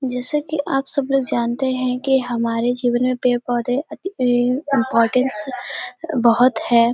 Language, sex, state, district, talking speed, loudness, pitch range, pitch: Hindi, female, Uttar Pradesh, Hamirpur, 145 wpm, -19 LUFS, 240-270 Hz, 255 Hz